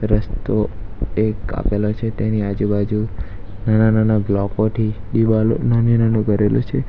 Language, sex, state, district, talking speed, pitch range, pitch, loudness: Gujarati, male, Gujarat, Valsad, 130 wpm, 105-110 Hz, 110 Hz, -19 LUFS